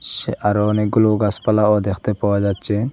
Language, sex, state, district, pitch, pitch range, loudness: Bengali, male, Assam, Hailakandi, 105 Hz, 100-105 Hz, -17 LUFS